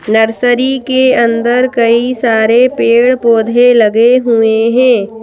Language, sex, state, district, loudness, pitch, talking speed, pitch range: Hindi, female, Madhya Pradesh, Bhopal, -10 LUFS, 235 Hz, 105 wpm, 225-250 Hz